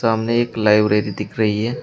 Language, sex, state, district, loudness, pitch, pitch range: Hindi, male, Uttar Pradesh, Shamli, -18 LUFS, 110 Hz, 105-115 Hz